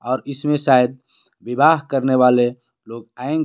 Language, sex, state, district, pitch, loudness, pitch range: Hindi, male, Jharkhand, Garhwa, 130 Hz, -17 LUFS, 125-140 Hz